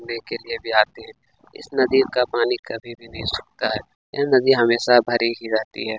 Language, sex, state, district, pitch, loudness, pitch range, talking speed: Hindi, male, Chhattisgarh, Kabirdham, 120 Hz, -20 LUFS, 115-135 Hz, 220 wpm